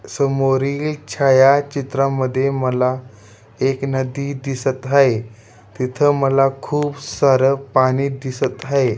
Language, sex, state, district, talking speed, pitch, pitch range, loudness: Marathi, male, Maharashtra, Dhule, 95 wpm, 135 Hz, 130-140 Hz, -18 LUFS